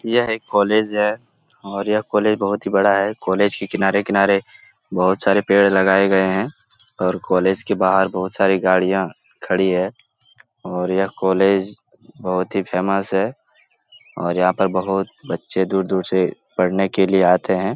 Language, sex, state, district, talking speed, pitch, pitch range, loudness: Hindi, male, Bihar, Jahanabad, 160 wpm, 95 Hz, 95-100 Hz, -19 LUFS